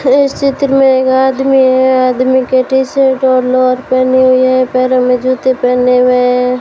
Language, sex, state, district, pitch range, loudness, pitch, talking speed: Hindi, female, Rajasthan, Bikaner, 255-265 Hz, -10 LUFS, 255 Hz, 190 wpm